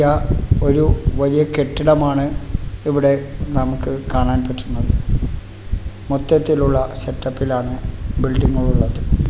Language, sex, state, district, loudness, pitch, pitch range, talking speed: Malayalam, male, Kerala, Kasaragod, -19 LUFS, 130 Hz, 110-140 Hz, 75 wpm